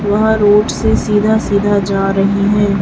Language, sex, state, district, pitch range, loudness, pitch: Hindi, female, Chhattisgarh, Raipur, 200-210 Hz, -13 LUFS, 205 Hz